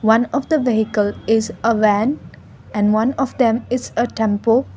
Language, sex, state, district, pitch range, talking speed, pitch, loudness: English, female, Assam, Kamrup Metropolitan, 220-250 Hz, 175 wpm, 225 Hz, -18 LUFS